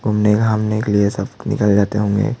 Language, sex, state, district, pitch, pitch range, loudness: Hindi, male, Chhattisgarh, Jashpur, 105 Hz, 100-110 Hz, -17 LUFS